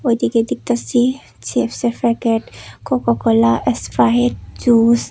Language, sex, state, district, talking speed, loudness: Bengali, female, Tripura, West Tripura, 105 wpm, -17 LUFS